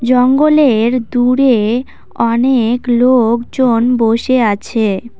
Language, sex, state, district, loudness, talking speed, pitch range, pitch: Bengali, female, West Bengal, Cooch Behar, -12 LUFS, 80 wpm, 230-255 Hz, 245 Hz